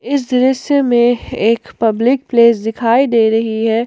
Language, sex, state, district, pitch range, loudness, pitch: Hindi, female, Jharkhand, Ranchi, 225-255 Hz, -13 LUFS, 235 Hz